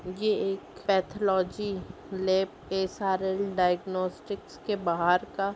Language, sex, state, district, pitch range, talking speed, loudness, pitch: Hindi, female, Bihar, Gopalganj, 185-200 Hz, 110 wpm, -29 LUFS, 190 Hz